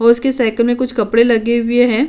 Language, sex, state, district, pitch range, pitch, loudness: Hindi, female, Uttar Pradesh, Budaun, 230-245 Hz, 235 Hz, -14 LUFS